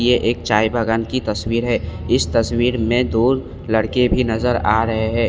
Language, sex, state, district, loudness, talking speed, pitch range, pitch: Hindi, male, Assam, Kamrup Metropolitan, -18 LUFS, 195 wpm, 110-120 Hz, 115 Hz